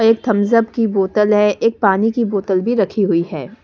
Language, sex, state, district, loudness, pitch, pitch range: Hindi, female, Delhi, New Delhi, -16 LUFS, 210 Hz, 195-225 Hz